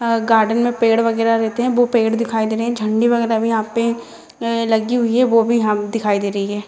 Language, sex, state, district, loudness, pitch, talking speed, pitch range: Hindi, female, Bihar, Jamui, -17 LUFS, 230 Hz, 270 wpm, 220-235 Hz